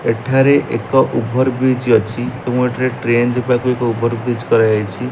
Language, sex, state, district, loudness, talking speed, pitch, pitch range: Odia, male, Odisha, Malkangiri, -16 LUFS, 165 wpm, 125 Hz, 115-130 Hz